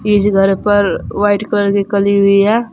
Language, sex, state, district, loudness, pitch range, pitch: Hindi, female, Uttar Pradesh, Saharanpur, -13 LUFS, 200-210 Hz, 205 Hz